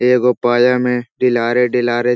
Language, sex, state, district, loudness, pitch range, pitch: Hindi, male, Bihar, Jahanabad, -15 LUFS, 120-125 Hz, 125 Hz